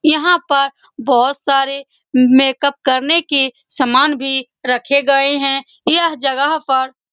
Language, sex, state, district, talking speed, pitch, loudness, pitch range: Hindi, female, Bihar, Saran, 135 wpm, 275 Hz, -14 LUFS, 265-295 Hz